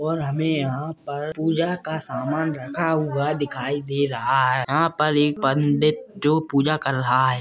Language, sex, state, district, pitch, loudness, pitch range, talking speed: Hindi, male, Maharashtra, Chandrapur, 150 Hz, -22 LUFS, 140-155 Hz, 180 wpm